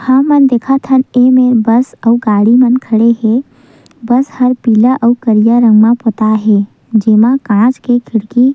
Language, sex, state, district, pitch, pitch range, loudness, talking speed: Chhattisgarhi, female, Chhattisgarh, Sukma, 240 Hz, 220-255 Hz, -10 LUFS, 160 wpm